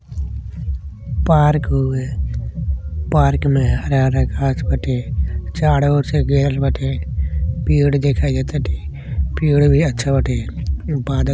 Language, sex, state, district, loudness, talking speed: Bhojpuri, male, Uttar Pradesh, Deoria, -18 LUFS, 135 wpm